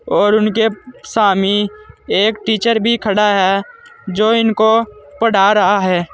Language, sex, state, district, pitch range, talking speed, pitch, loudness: Hindi, male, Uttar Pradesh, Saharanpur, 200-225 Hz, 125 wpm, 215 Hz, -14 LUFS